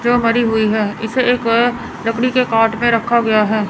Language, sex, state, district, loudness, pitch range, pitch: Hindi, female, Chandigarh, Chandigarh, -15 LUFS, 220-240 Hz, 230 Hz